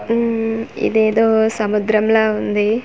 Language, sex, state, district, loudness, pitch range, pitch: Telugu, female, Andhra Pradesh, Manyam, -16 LUFS, 215-225 Hz, 220 Hz